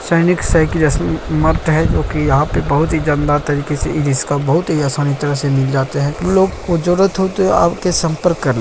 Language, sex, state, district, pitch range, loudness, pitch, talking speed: Hindi, male, Bihar, Saharsa, 145-170 Hz, -15 LUFS, 155 Hz, 225 wpm